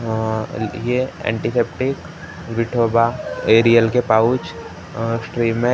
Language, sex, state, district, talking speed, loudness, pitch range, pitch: Hindi, male, Maharashtra, Gondia, 75 wpm, -19 LUFS, 110-120 Hz, 115 Hz